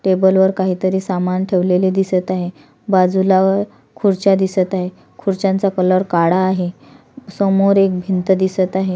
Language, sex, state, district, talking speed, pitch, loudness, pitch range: Marathi, female, Maharashtra, Solapur, 135 wpm, 190 Hz, -16 LUFS, 185-195 Hz